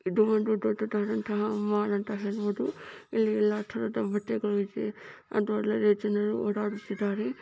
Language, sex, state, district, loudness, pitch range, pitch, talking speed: Kannada, female, Karnataka, Bijapur, -29 LUFS, 205-215 Hz, 210 Hz, 130 wpm